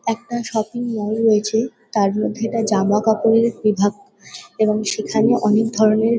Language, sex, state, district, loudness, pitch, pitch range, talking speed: Bengali, female, West Bengal, Kolkata, -18 LUFS, 220 Hz, 215-230 Hz, 125 wpm